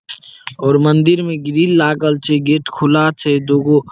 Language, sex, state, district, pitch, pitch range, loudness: Maithili, male, Bihar, Saharsa, 150 Hz, 145-155 Hz, -14 LUFS